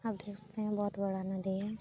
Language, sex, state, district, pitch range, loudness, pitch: Hindi, female, Bihar, Saran, 195-210 Hz, -37 LUFS, 205 Hz